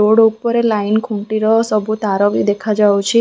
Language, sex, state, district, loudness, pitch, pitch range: Odia, female, Odisha, Khordha, -15 LUFS, 215 Hz, 205-225 Hz